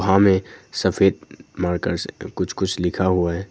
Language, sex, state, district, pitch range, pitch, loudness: Hindi, male, Arunachal Pradesh, Longding, 90-95 Hz, 95 Hz, -21 LUFS